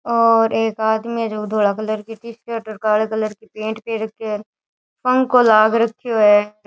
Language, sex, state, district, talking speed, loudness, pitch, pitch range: Rajasthani, female, Rajasthan, Churu, 190 wpm, -18 LUFS, 220 Hz, 215-230 Hz